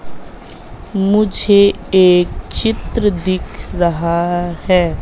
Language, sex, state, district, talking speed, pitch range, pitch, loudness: Hindi, female, Madhya Pradesh, Katni, 70 wpm, 175-200 Hz, 185 Hz, -15 LUFS